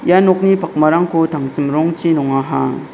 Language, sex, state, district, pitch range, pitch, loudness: Garo, male, Meghalaya, South Garo Hills, 140-175 Hz, 160 Hz, -15 LUFS